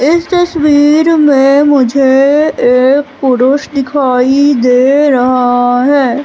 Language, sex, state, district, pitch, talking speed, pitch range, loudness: Hindi, female, Madhya Pradesh, Katni, 275 Hz, 95 wpm, 255-290 Hz, -9 LUFS